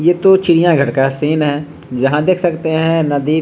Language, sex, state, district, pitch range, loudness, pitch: Hindi, male, Bihar, Vaishali, 145-170 Hz, -14 LUFS, 155 Hz